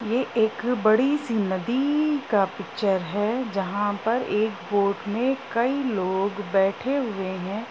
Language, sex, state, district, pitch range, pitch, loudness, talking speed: Hindi, female, Bihar, Darbhanga, 200-250 Hz, 215 Hz, -24 LUFS, 140 wpm